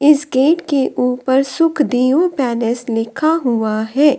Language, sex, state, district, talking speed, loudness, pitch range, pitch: Hindi, female, Delhi, New Delhi, 130 wpm, -16 LUFS, 245-300 Hz, 265 Hz